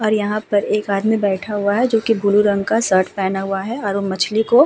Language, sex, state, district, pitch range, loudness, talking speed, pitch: Hindi, female, Uttar Pradesh, Hamirpur, 195-215 Hz, -18 LUFS, 270 wpm, 205 Hz